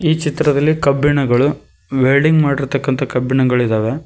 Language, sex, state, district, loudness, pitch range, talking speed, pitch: Kannada, male, Karnataka, Koppal, -15 LUFS, 130-150 Hz, 90 wpm, 140 Hz